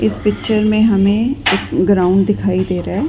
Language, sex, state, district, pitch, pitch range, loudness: Hindi, female, Chhattisgarh, Rajnandgaon, 200 Hz, 185-215 Hz, -15 LUFS